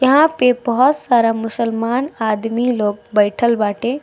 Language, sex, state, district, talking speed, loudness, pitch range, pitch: Bhojpuri, female, Bihar, East Champaran, 135 wpm, -16 LUFS, 225-250 Hz, 235 Hz